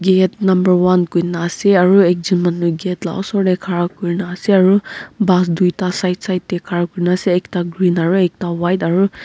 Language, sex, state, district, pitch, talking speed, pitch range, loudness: Nagamese, female, Nagaland, Kohima, 180 Hz, 195 wpm, 175-190 Hz, -16 LUFS